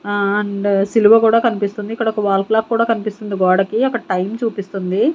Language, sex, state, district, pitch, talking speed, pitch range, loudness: Telugu, female, Andhra Pradesh, Sri Satya Sai, 210 Hz, 175 wpm, 200-225 Hz, -17 LUFS